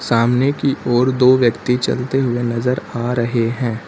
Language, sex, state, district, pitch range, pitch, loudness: Hindi, male, Uttar Pradesh, Lucknow, 120-130 Hz, 125 Hz, -17 LUFS